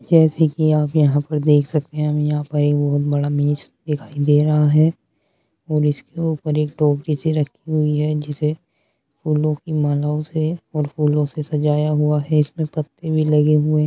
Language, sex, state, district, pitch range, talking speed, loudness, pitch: Hindi, female, Uttar Pradesh, Muzaffarnagar, 150-155 Hz, 190 wpm, -19 LUFS, 150 Hz